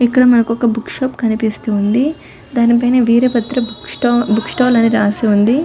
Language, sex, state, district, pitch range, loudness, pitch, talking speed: Telugu, female, Telangana, Karimnagar, 225-250 Hz, -14 LUFS, 235 Hz, 150 wpm